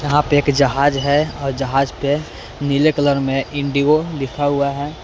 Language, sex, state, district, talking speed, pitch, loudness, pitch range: Hindi, male, Jharkhand, Palamu, 165 wpm, 140 Hz, -18 LUFS, 135-145 Hz